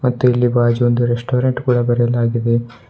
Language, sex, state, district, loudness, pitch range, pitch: Kannada, male, Karnataka, Bidar, -16 LUFS, 120-125 Hz, 120 Hz